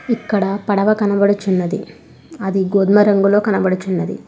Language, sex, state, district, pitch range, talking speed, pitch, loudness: Telugu, female, Telangana, Hyderabad, 195-205 Hz, 100 wpm, 200 Hz, -16 LUFS